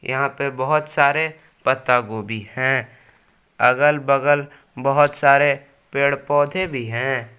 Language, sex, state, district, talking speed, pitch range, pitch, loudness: Hindi, male, Jharkhand, Palamu, 120 wpm, 130-145 Hz, 140 Hz, -19 LUFS